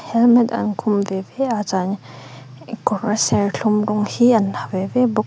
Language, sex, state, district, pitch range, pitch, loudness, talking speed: Mizo, female, Mizoram, Aizawl, 190-235 Hz, 210 Hz, -19 LUFS, 195 wpm